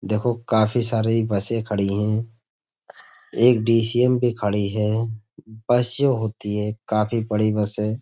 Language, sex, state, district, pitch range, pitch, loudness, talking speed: Hindi, male, Uttar Pradesh, Budaun, 105-120 Hz, 110 Hz, -21 LUFS, 140 wpm